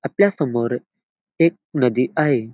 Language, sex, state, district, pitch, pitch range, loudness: Marathi, male, Maharashtra, Dhule, 135 Hz, 125-160 Hz, -20 LUFS